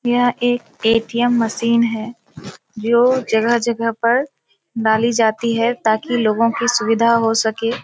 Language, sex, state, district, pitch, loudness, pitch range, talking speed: Hindi, female, Bihar, Kishanganj, 230 Hz, -17 LUFS, 225-240 Hz, 130 wpm